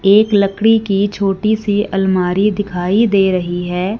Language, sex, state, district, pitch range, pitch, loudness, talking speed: Hindi, female, Punjab, Fazilka, 190-210 Hz, 200 Hz, -15 LUFS, 135 wpm